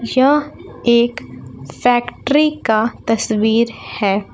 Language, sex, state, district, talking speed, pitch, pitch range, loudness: Hindi, female, Jharkhand, Palamu, 85 wpm, 230 Hz, 205-245 Hz, -16 LUFS